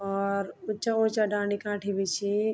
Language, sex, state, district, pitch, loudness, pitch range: Garhwali, female, Uttarakhand, Tehri Garhwal, 205 Hz, -29 LUFS, 200-215 Hz